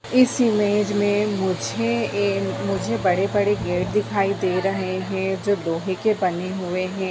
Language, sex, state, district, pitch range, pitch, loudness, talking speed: Hindi, female, Bihar, Begusarai, 180-205 Hz, 190 Hz, -22 LUFS, 160 wpm